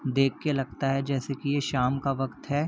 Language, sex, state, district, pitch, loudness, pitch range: Hindi, male, Chhattisgarh, Bilaspur, 135 Hz, -28 LUFS, 135-140 Hz